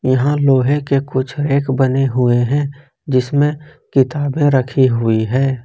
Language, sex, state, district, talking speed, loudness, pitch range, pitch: Hindi, male, Jharkhand, Ranchi, 140 wpm, -16 LUFS, 130-145 Hz, 135 Hz